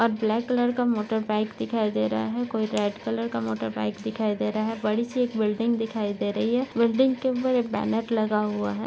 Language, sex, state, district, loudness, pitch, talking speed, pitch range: Hindi, female, Maharashtra, Nagpur, -26 LUFS, 220 Hz, 225 wpm, 205-235 Hz